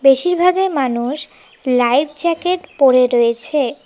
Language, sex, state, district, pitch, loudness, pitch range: Bengali, female, West Bengal, Cooch Behar, 275 Hz, -15 LUFS, 250-340 Hz